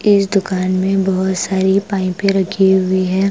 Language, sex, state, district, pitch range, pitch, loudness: Hindi, female, Punjab, Pathankot, 185-195 Hz, 190 Hz, -15 LUFS